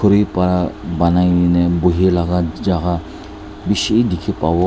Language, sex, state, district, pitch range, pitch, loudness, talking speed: Nagamese, male, Nagaland, Dimapur, 85-90 Hz, 90 Hz, -16 LUFS, 100 wpm